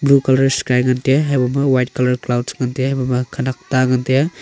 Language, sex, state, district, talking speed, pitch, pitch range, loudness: Wancho, male, Arunachal Pradesh, Longding, 270 wpm, 130 Hz, 125-135 Hz, -17 LUFS